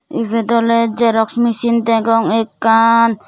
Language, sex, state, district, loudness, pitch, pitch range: Chakma, female, Tripura, Dhalai, -14 LUFS, 230 Hz, 225-230 Hz